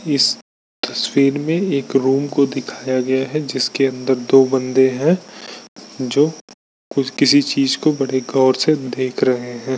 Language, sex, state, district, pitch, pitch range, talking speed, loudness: Hindi, male, Bihar, Bhagalpur, 135 Hz, 130-150 Hz, 145 wpm, -17 LUFS